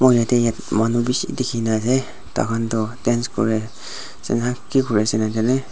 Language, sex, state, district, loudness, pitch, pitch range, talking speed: Nagamese, male, Nagaland, Dimapur, -20 LUFS, 115 Hz, 110-125 Hz, 155 wpm